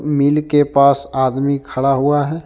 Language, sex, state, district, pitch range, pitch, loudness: Hindi, male, Jharkhand, Deoghar, 135-145 Hz, 140 Hz, -15 LUFS